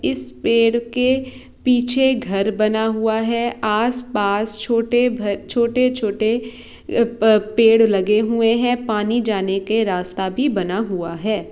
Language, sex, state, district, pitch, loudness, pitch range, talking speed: Hindi, female, Bihar, Saran, 225 Hz, -19 LUFS, 210-240 Hz, 125 wpm